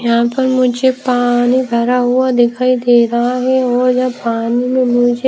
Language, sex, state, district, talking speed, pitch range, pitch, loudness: Hindi, female, Himachal Pradesh, Shimla, 170 wpm, 240-255 Hz, 250 Hz, -13 LUFS